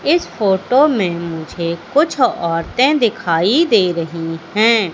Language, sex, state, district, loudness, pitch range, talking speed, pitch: Hindi, female, Madhya Pradesh, Katni, -16 LUFS, 170-265 Hz, 120 wpm, 195 Hz